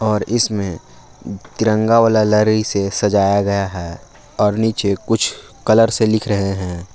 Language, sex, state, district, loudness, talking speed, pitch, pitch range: Hindi, male, Jharkhand, Palamu, -16 LUFS, 145 wpm, 105 Hz, 100-110 Hz